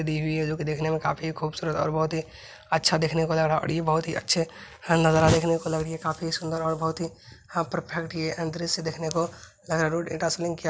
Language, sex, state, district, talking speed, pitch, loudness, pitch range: Hindi, male, Bihar, Madhepura, 245 wpm, 160 Hz, -26 LUFS, 160-165 Hz